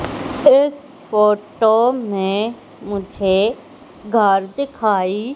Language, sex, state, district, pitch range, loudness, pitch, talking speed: Hindi, male, Madhya Pradesh, Umaria, 200-270 Hz, -17 LUFS, 215 Hz, 65 wpm